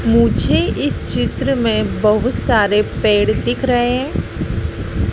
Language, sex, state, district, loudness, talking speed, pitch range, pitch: Hindi, female, Madhya Pradesh, Dhar, -17 LUFS, 105 wpm, 205-245 Hz, 215 Hz